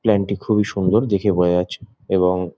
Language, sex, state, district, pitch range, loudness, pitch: Bengali, male, West Bengal, Jhargram, 90-105 Hz, -19 LUFS, 100 Hz